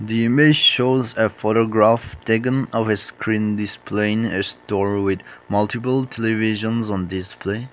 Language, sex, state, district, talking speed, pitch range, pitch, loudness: English, male, Nagaland, Kohima, 130 wpm, 105-115 Hz, 110 Hz, -19 LUFS